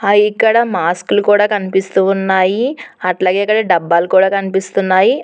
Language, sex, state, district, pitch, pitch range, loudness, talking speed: Telugu, female, Telangana, Hyderabad, 195 Hz, 185-210 Hz, -13 LUFS, 135 wpm